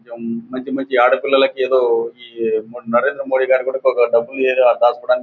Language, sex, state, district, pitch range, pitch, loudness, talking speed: Telugu, male, Andhra Pradesh, Anantapur, 115-130 Hz, 125 Hz, -17 LUFS, 140 wpm